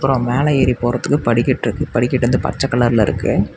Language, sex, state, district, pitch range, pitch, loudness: Tamil, male, Tamil Nadu, Namakkal, 120-135 Hz, 120 Hz, -16 LUFS